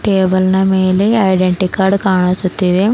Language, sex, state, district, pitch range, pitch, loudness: Kannada, female, Karnataka, Bidar, 185-195 Hz, 190 Hz, -13 LUFS